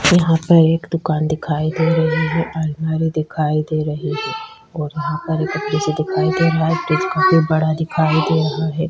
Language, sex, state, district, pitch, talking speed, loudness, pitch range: Hindi, female, Chhattisgarh, Sukma, 160 Hz, 195 wpm, -18 LUFS, 155-165 Hz